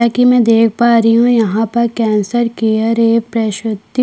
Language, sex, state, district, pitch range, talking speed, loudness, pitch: Hindi, female, Chhattisgarh, Kabirdham, 225-235 Hz, 195 wpm, -13 LUFS, 230 Hz